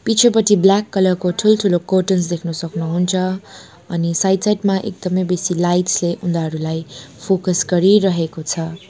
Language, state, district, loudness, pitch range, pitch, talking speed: Nepali, West Bengal, Darjeeling, -17 LUFS, 170-195 Hz, 180 Hz, 135 wpm